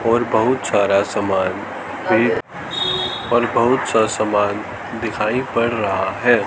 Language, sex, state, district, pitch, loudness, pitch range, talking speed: Hindi, male, Haryana, Charkhi Dadri, 105 Hz, -19 LUFS, 100-115 Hz, 110 wpm